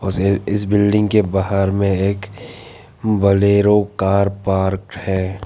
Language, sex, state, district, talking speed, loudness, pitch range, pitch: Hindi, male, Arunachal Pradesh, Papum Pare, 120 wpm, -17 LUFS, 95-105 Hz, 100 Hz